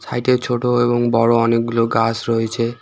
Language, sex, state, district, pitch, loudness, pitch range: Bengali, male, West Bengal, Alipurduar, 115 Hz, -17 LUFS, 115-120 Hz